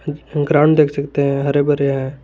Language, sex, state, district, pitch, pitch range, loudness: Hindi, male, Jharkhand, Garhwa, 145 Hz, 140-150 Hz, -16 LUFS